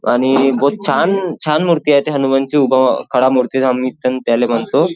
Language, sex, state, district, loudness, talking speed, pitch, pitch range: Marathi, male, Maharashtra, Chandrapur, -14 LUFS, 155 wpm, 135 Hz, 130-145 Hz